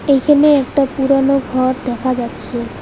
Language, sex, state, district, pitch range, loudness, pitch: Bengali, female, West Bengal, Alipurduar, 255-275 Hz, -15 LUFS, 265 Hz